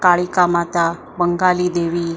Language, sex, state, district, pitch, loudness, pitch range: Gujarati, female, Maharashtra, Mumbai Suburban, 175 Hz, -17 LUFS, 170-180 Hz